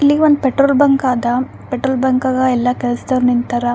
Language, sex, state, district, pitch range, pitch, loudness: Kannada, female, Karnataka, Raichur, 245-275 Hz, 260 Hz, -15 LUFS